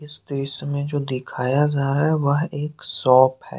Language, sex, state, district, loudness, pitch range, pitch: Hindi, male, Jharkhand, Deoghar, -21 LUFS, 130-150 Hz, 140 Hz